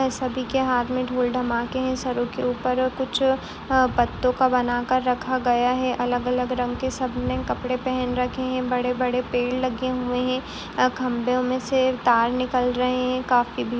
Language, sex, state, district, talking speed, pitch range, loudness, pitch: Hindi, female, Uttar Pradesh, Etah, 190 wpm, 245-255 Hz, -23 LUFS, 250 Hz